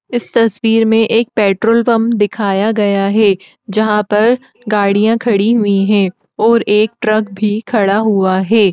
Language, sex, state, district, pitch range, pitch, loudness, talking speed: Hindi, female, Uttar Pradesh, Etah, 200-225 Hz, 215 Hz, -13 LUFS, 150 wpm